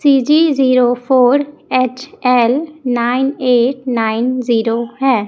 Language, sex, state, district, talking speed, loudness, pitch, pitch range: Hindi, female, Chhattisgarh, Raipur, 100 wpm, -14 LUFS, 255 Hz, 240-270 Hz